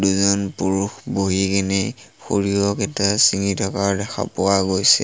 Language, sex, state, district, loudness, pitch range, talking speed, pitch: Assamese, male, Assam, Sonitpur, -19 LUFS, 95-100 Hz, 130 wpm, 100 Hz